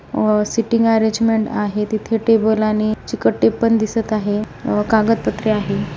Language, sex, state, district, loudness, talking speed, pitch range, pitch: Marathi, female, Maharashtra, Pune, -17 LUFS, 150 wpm, 215-225 Hz, 220 Hz